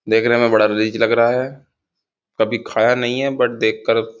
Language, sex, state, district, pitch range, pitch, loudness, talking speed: Hindi, male, Uttar Pradesh, Gorakhpur, 115-140 Hz, 125 Hz, -17 LUFS, 200 wpm